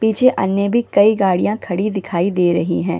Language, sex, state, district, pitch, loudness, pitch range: Hindi, female, Bihar, Samastipur, 200 Hz, -16 LUFS, 180-220 Hz